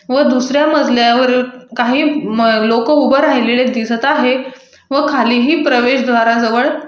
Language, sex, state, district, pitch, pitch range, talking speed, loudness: Marathi, female, Maharashtra, Aurangabad, 255 Hz, 240-285 Hz, 130 wpm, -13 LUFS